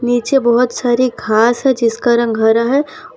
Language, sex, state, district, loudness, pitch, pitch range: Hindi, female, Gujarat, Valsad, -14 LUFS, 240 Hz, 230-255 Hz